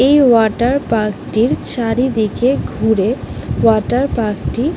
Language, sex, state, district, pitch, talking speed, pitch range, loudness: Bengali, female, West Bengal, Kolkata, 230 Hz, 125 wpm, 220-255 Hz, -15 LUFS